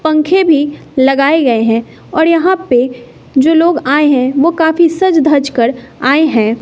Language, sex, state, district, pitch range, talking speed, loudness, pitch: Hindi, female, Bihar, West Champaran, 260-320 Hz, 170 wpm, -11 LUFS, 295 Hz